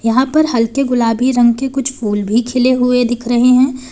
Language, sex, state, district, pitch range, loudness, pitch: Hindi, female, Uttar Pradesh, Lalitpur, 235-260 Hz, -14 LUFS, 250 Hz